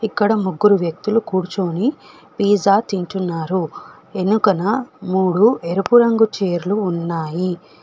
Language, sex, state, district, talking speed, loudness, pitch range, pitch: Telugu, female, Telangana, Hyderabad, 90 wpm, -18 LUFS, 180-215 Hz, 195 Hz